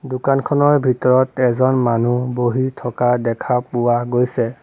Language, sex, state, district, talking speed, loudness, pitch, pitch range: Assamese, male, Assam, Sonitpur, 115 wpm, -17 LUFS, 125 Hz, 120-130 Hz